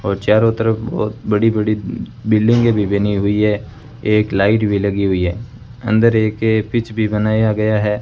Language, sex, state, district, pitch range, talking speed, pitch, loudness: Hindi, male, Rajasthan, Bikaner, 105-115 Hz, 185 wpm, 110 Hz, -16 LUFS